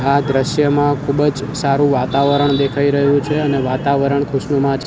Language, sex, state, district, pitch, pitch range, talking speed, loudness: Gujarati, male, Gujarat, Gandhinagar, 140 Hz, 140-145 Hz, 150 wpm, -16 LUFS